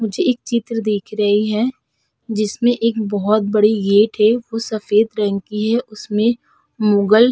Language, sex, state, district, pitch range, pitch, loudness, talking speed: Hindi, female, Uttar Pradesh, Budaun, 210-230 Hz, 215 Hz, -17 LUFS, 165 wpm